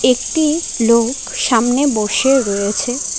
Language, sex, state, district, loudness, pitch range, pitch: Bengali, female, West Bengal, Alipurduar, -15 LUFS, 225-270 Hz, 245 Hz